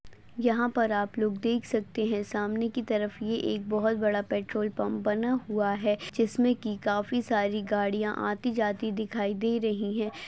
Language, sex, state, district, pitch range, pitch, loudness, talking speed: Hindi, female, Maharashtra, Pune, 205-230 Hz, 215 Hz, -29 LUFS, 170 wpm